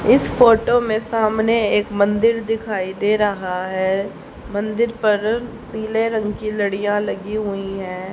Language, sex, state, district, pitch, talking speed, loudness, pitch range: Hindi, female, Haryana, Jhajjar, 210 Hz, 140 wpm, -19 LUFS, 200-225 Hz